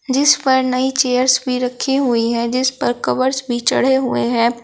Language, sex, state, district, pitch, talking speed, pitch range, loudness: Hindi, male, Uttar Pradesh, Shamli, 255 Hz, 195 wpm, 240-265 Hz, -16 LUFS